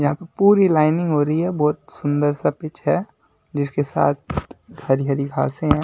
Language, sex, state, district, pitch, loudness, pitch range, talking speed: Hindi, male, Delhi, New Delhi, 150 Hz, -20 LUFS, 145-170 Hz, 185 wpm